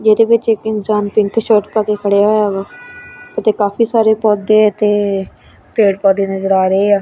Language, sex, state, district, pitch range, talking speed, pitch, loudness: Punjabi, female, Punjab, Kapurthala, 200-220 Hz, 180 wpm, 215 Hz, -14 LUFS